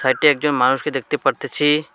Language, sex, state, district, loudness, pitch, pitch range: Bengali, male, West Bengal, Alipurduar, -18 LUFS, 145 Hz, 135-150 Hz